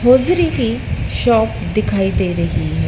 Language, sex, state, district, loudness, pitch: Hindi, female, Madhya Pradesh, Dhar, -16 LUFS, 230 Hz